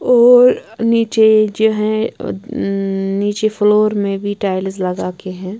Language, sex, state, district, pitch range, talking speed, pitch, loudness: Hindi, female, Punjab, Kapurthala, 195-220 Hz, 130 wpm, 210 Hz, -15 LUFS